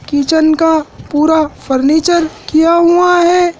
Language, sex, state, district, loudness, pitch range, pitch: Hindi, male, Madhya Pradesh, Dhar, -11 LUFS, 305-345 Hz, 320 Hz